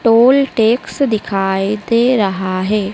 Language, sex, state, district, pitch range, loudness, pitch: Hindi, female, Madhya Pradesh, Dhar, 195-240 Hz, -14 LUFS, 215 Hz